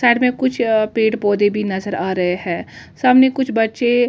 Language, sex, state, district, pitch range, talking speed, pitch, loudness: Hindi, female, Delhi, New Delhi, 205-250 Hz, 220 wpm, 225 Hz, -17 LUFS